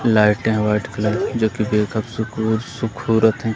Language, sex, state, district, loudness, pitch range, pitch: Hindi, male, Madhya Pradesh, Umaria, -19 LUFS, 105-110 Hz, 110 Hz